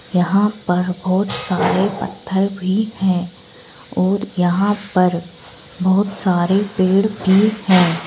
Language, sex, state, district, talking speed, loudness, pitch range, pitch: Hindi, female, Uttar Pradesh, Etah, 110 wpm, -18 LUFS, 180-200 Hz, 190 Hz